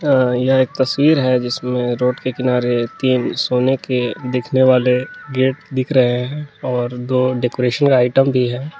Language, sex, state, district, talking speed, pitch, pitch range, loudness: Hindi, male, Jharkhand, Garhwa, 170 wpm, 130 Hz, 125-130 Hz, -17 LUFS